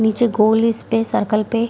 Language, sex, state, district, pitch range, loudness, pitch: Hindi, female, Bihar, Bhagalpur, 215-230 Hz, -17 LUFS, 225 Hz